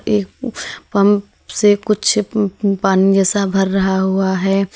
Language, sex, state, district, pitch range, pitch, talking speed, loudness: Hindi, female, Uttar Pradesh, Lalitpur, 190-205 Hz, 195 Hz, 125 wpm, -16 LUFS